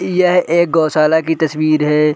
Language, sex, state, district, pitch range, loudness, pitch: Hindi, male, Uttar Pradesh, Gorakhpur, 155-170 Hz, -14 LUFS, 160 Hz